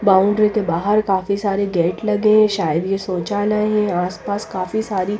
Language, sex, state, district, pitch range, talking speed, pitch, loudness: Hindi, female, Bihar, Patna, 185-210 Hz, 175 wpm, 200 Hz, -18 LUFS